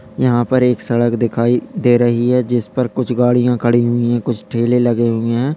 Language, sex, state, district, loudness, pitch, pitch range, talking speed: Hindi, male, Bihar, Jamui, -15 LUFS, 120 Hz, 120-125 Hz, 215 wpm